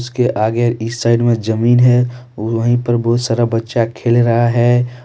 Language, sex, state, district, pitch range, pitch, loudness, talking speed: Hindi, male, Jharkhand, Deoghar, 115-120 Hz, 120 Hz, -15 LUFS, 190 wpm